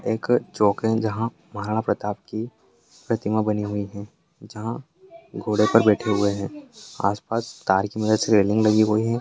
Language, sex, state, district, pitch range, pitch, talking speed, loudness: Hindi, male, Chhattisgarh, Jashpur, 105-115 Hz, 110 Hz, 175 wpm, -23 LUFS